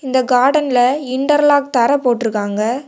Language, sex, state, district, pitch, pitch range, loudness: Tamil, female, Tamil Nadu, Kanyakumari, 260 Hz, 245-285 Hz, -15 LUFS